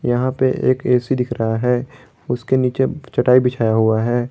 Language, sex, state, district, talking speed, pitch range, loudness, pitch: Hindi, male, Jharkhand, Garhwa, 180 wpm, 120-130 Hz, -18 LUFS, 125 Hz